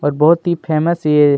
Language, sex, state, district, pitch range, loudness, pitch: Hindi, male, Chhattisgarh, Kabirdham, 150-170 Hz, -15 LUFS, 155 Hz